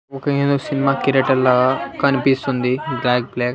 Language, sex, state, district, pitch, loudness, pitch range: Telugu, male, Andhra Pradesh, Annamaya, 135 Hz, -18 LUFS, 125-140 Hz